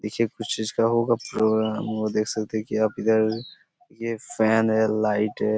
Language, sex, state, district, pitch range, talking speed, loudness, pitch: Hindi, male, Chhattisgarh, Korba, 110-115 Hz, 195 wpm, -24 LUFS, 110 Hz